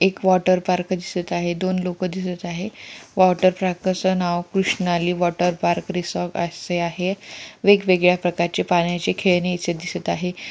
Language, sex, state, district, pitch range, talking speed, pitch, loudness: Marathi, female, Maharashtra, Pune, 175-185 Hz, 135 wpm, 180 Hz, -21 LUFS